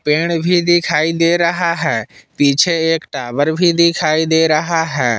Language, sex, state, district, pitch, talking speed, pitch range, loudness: Hindi, male, Jharkhand, Palamu, 165 Hz, 160 wpm, 155-170 Hz, -15 LUFS